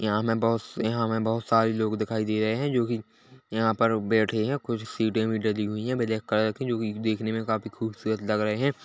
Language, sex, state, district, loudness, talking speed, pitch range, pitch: Hindi, male, Chhattisgarh, Bilaspur, -27 LUFS, 230 wpm, 110-115 Hz, 110 Hz